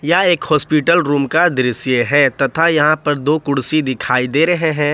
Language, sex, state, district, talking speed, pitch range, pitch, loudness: Hindi, male, Jharkhand, Ranchi, 195 wpm, 135-160 Hz, 150 Hz, -15 LUFS